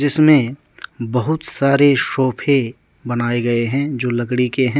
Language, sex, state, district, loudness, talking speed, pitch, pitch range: Hindi, male, Jharkhand, Deoghar, -17 LUFS, 140 wpm, 130 Hz, 120-140 Hz